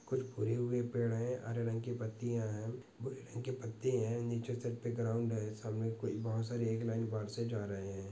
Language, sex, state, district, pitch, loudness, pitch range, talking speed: Hindi, male, Andhra Pradesh, Krishna, 115 Hz, -39 LUFS, 110-120 Hz, 200 wpm